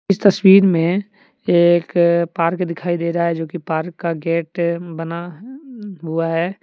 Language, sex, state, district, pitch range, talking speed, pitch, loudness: Hindi, male, Jharkhand, Deoghar, 165-190 Hz, 155 wpm, 170 Hz, -18 LUFS